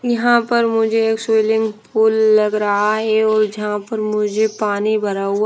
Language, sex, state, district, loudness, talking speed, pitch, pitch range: Hindi, female, Punjab, Fazilka, -17 LUFS, 185 wpm, 220 Hz, 210-220 Hz